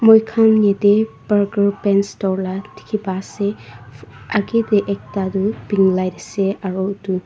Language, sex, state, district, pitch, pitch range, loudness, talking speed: Nagamese, female, Nagaland, Dimapur, 200 Hz, 190-210 Hz, -18 LUFS, 150 wpm